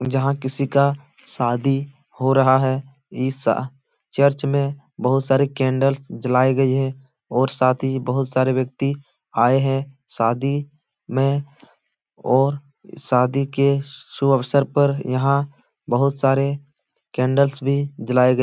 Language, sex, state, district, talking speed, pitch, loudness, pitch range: Hindi, male, Uttar Pradesh, Etah, 130 wpm, 135 Hz, -20 LUFS, 130-140 Hz